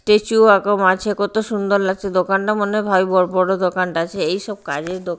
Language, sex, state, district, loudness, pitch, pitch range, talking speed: Bengali, female, Odisha, Nuapada, -18 LUFS, 195 Hz, 185-210 Hz, 195 wpm